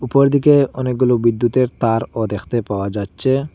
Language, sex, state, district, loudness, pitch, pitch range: Bengali, male, Assam, Hailakandi, -17 LUFS, 125 Hz, 110-130 Hz